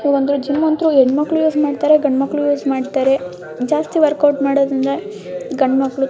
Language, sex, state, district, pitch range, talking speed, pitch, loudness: Kannada, female, Karnataka, Mysore, 270-295 Hz, 155 wpm, 280 Hz, -16 LUFS